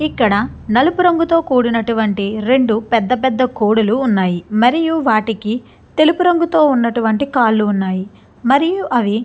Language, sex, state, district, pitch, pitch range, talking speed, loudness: Telugu, female, Andhra Pradesh, Chittoor, 235 Hz, 215-280 Hz, 115 wpm, -15 LUFS